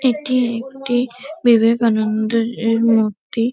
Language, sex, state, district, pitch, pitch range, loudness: Bengali, female, West Bengal, Kolkata, 230 Hz, 225-250 Hz, -17 LUFS